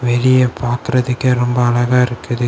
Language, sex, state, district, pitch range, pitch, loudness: Tamil, male, Tamil Nadu, Kanyakumari, 120-125 Hz, 125 Hz, -15 LUFS